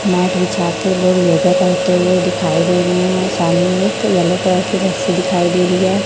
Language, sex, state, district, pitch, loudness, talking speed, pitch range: Hindi, male, Chhattisgarh, Raipur, 180 Hz, -14 LUFS, 200 wpm, 180-185 Hz